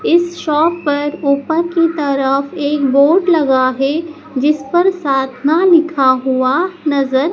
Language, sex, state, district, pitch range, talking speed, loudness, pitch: Hindi, male, Madhya Pradesh, Dhar, 275-330 Hz, 130 wpm, -14 LUFS, 295 Hz